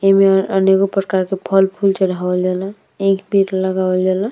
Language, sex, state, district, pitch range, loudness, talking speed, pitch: Bhojpuri, female, Uttar Pradesh, Deoria, 190-195 Hz, -16 LUFS, 180 wpm, 190 Hz